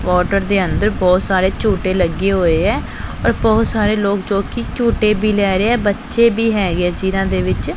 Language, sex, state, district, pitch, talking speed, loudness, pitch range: Punjabi, male, Punjab, Pathankot, 195 Hz, 200 wpm, -16 LUFS, 185-215 Hz